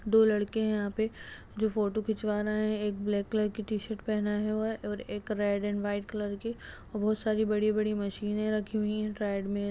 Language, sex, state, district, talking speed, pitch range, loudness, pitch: Hindi, female, Chhattisgarh, Raigarh, 215 wpm, 205-215 Hz, -31 LUFS, 210 Hz